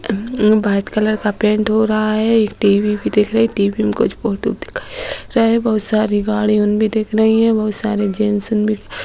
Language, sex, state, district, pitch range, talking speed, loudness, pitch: Hindi, female, Bihar, Bhagalpur, 210-220 Hz, 240 wpm, -16 LUFS, 215 Hz